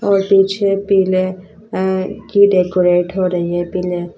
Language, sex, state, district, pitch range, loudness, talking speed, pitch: Hindi, female, Uttar Pradesh, Shamli, 180-195 Hz, -15 LUFS, 145 wpm, 185 Hz